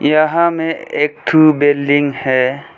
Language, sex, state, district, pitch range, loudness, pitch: Hindi, male, Arunachal Pradesh, Lower Dibang Valley, 140-155 Hz, -14 LUFS, 150 Hz